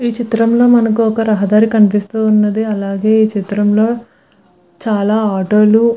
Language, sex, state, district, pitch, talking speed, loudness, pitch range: Telugu, female, Andhra Pradesh, Visakhapatnam, 220 Hz, 140 wpm, -13 LUFS, 210-225 Hz